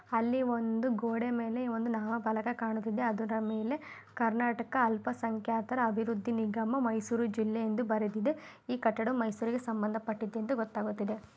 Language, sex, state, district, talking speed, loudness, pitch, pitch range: Kannada, female, Karnataka, Mysore, 130 wpm, -33 LUFS, 230 Hz, 220-240 Hz